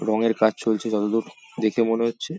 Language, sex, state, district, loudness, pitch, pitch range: Bengali, male, West Bengal, Paschim Medinipur, -23 LUFS, 110 Hz, 110-115 Hz